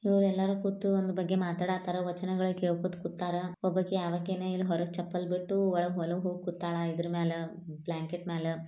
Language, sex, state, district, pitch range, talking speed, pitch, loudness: Kannada, female, Karnataka, Bijapur, 170-185 Hz, 150 wpm, 180 Hz, -32 LUFS